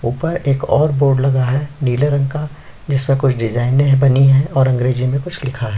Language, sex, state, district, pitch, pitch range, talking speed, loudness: Hindi, male, Chhattisgarh, Sukma, 135 Hz, 130-140 Hz, 205 wpm, -15 LUFS